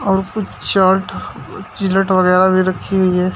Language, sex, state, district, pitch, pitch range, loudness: Hindi, male, Uttar Pradesh, Shamli, 190 Hz, 185-195 Hz, -15 LUFS